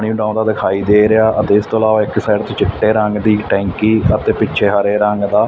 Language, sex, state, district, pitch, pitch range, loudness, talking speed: Punjabi, male, Punjab, Fazilka, 105 Hz, 105-110 Hz, -14 LUFS, 230 wpm